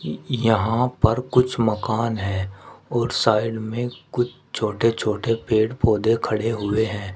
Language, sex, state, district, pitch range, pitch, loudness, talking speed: Hindi, male, Uttar Pradesh, Shamli, 110-115 Hz, 115 Hz, -22 LUFS, 135 wpm